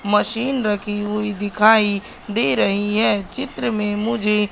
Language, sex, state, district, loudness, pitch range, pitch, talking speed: Hindi, female, Madhya Pradesh, Katni, -19 LUFS, 205-225 Hz, 210 Hz, 135 wpm